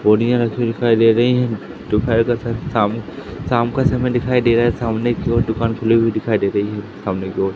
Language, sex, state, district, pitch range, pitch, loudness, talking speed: Hindi, male, Madhya Pradesh, Katni, 105-120 Hz, 115 Hz, -18 LUFS, 245 wpm